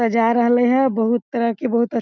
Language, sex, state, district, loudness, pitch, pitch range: Maithili, female, Bihar, Samastipur, -18 LUFS, 235 Hz, 230-245 Hz